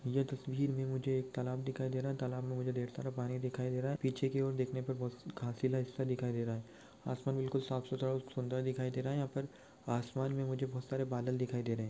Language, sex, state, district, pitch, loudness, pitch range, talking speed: Hindi, male, Chhattisgarh, Bilaspur, 130 Hz, -38 LUFS, 125-135 Hz, 270 wpm